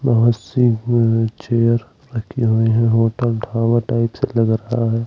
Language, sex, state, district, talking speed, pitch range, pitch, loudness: Hindi, male, Madhya Pradesh, Umaria, 165 wpm, 115-120 Hz, 115 Hz, -17 LUFS